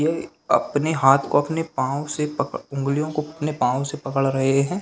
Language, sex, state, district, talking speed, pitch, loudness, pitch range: Hindi, male, Uttar Pradesh, Jalaun, 200 wpm, 145 Hz, -22 LUFS, 135-155 Hz